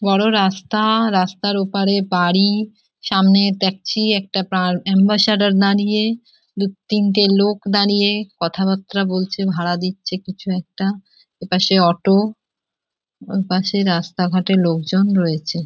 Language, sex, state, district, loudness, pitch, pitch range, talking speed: Bengali, female, West Bengal, Jhargram, -17 LUFS, 195 Hz, 185-205 Hz, 110 wpm